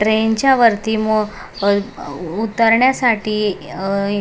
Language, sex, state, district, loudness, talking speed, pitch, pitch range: Marathi, female, Maharashtra, Mumbai Suburban, -16 LUFS, 130 wpm, 215 Hz, 205-225 Hz